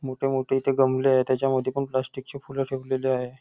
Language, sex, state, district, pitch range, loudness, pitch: Marathi, male, Maharashtra, Nagpur, 130-135 Hz, -25 LUFS, 130 Hz